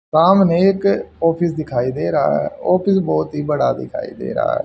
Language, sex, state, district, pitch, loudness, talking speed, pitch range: Hindi, male, Haryana, Rohtak, 165 Hz, -17 LUFS, 195 wpm, 145-190 Hz